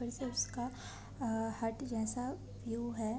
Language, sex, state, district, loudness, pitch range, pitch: Hindi, female, Uttarakhand, Tehri Garhwal, -39 LUFS, 225-245 Hz, 230 Hz